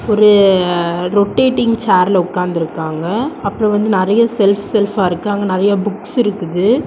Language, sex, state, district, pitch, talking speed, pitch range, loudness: Tamil, female, Tamil Nadu, Kanyakumari, 200 Hz, 130 wpm, 180-215 Hz, -14 LUFS